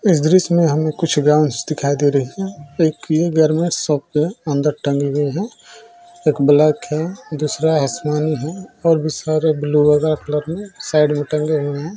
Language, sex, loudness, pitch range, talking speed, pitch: Maithili, female, -17 LUFS, 150-165 Hz, 190 wpm, 155 Hz